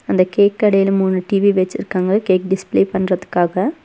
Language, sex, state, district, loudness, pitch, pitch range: Tamil, female, Tamil Nadu, Nilgiris, -16 LUFS, 190 Hz, 185-200 Hz